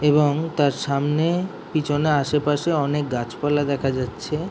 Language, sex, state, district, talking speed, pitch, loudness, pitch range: Bengali, male, West Bengal, Jhargram, 120 wpm, 145 Hz, -22 LUFS, 140-155 Hz